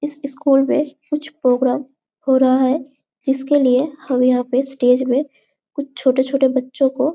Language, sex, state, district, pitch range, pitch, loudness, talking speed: Hindi, female, Chhattisgarh, Bastar, 260-285 Hz, 270 Hz, -18 LUFS, 160 wpm